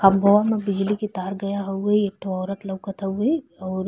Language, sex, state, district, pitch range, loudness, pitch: Bhojpuri, female, Uttar Pradesh, Ghazipur, 195-205 Hz, -23 LUFS, 195 Hz